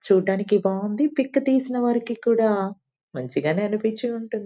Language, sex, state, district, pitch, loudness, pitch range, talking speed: Telugu, female, Telangana, Nalgonda, 215 Hz, -23 LUFS, 195-240 Hz, 135 wpm